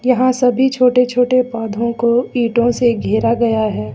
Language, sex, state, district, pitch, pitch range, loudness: Hindi, female, Jharkhand, Ranchi, 240 Hz, 230-250 Hz, -15 LUFS